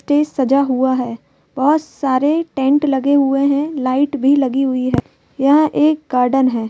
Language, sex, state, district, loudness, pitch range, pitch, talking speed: Hindi, female, Madhya Pradesh, Bhopal, -16 LUFS, 260-290 Hz, 275 Hz, 170 wpm